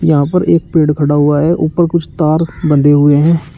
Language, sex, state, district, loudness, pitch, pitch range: Hindi, male, Uttar Pradesh, Shamli, -11 LUFS, 155 Hz, 145-165 Hz